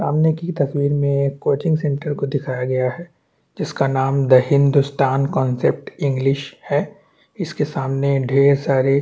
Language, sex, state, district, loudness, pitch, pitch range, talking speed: Hindi, male, Chhattisgarh, Bastar, -19 LUFS, 140 Hz, 135-150 Hz, 155 wpm